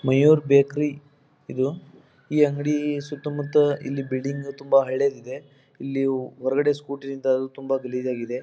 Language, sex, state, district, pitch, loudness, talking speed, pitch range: Kannada, male, Karnataka, Dharwad, 140 Hz, -23 LUFS, 135 wpm, 135-145 Hz